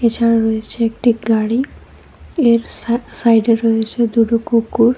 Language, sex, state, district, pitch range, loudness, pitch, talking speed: Bengali, female, Tripura, West Tripura, 225-235 Hz, -16 LUFS, 230 Hz, 110 wpm